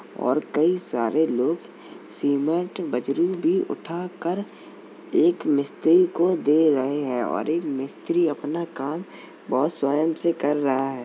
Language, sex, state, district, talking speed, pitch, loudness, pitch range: Hindi, male, Uttar Pradesh, Jalaun, 135 wpm, 160 Hz, -23 LUFS, 140-175 Hz